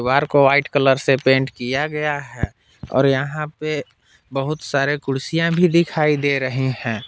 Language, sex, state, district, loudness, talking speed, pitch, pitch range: Hindi, male, Jharkhand, Palamu, -19 LUFS, 170 wpm, 140 Hz, 130-150 Hz